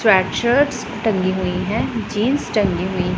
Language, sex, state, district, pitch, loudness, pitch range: Hindi, female, Punjab, Pathankot, 210 Hz, -19 LUFS, 185-235 Hz